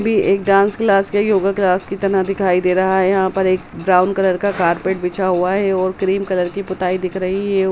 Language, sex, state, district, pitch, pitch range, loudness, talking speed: Hindi, female, Bihar, Samastipur, 190 Hz, 185-195 Hz, -17 LUFS, 250 wpm